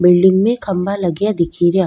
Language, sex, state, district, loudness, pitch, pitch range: Rajasthani, female, Rajasthan, Nagaur, -15 LUFS, 190 Hz, 175-200 Hz